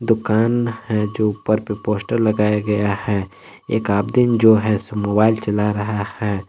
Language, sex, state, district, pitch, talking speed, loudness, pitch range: Hindi, male, Jharkhand, Palamu, 105 Hz, 155 wpm, -19 LUFS, 105-110 Hz